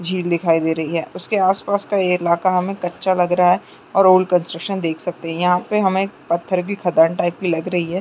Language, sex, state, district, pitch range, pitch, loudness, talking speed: Chhattisgarhi, female, Chhattisgarh, Jashpur, 170-190 Hz, 180 Hz, -18 LUFS, 240 wpm